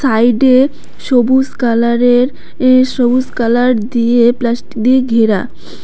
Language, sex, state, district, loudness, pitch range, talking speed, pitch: Bengali, female, West Bengal, Cooch Behar, -12 LUFS, 235-255 Hz, 100 wpm, 245 Hz